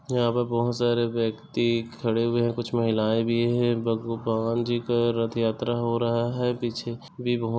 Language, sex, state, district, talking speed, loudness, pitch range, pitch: Hindi, male, Chhattisgarh, Bastar, 180 wpm, -26 LUFS, 115-120 Hz, 120 Hz